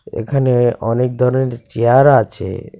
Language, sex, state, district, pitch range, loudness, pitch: Bengali, male, Tripura, West Tripura, 115-130 Hz, -15 LUFS, 120 Hz